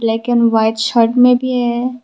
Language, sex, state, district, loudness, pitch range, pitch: Hindi, female, Tripura, West Tripura, -13 LUFS, 225-250 Hz, 240 Hz